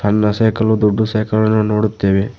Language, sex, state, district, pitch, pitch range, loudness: Kannada, male, Karnataka, Koppal, 110 Hz, 105-110 Hz, -15 LUFS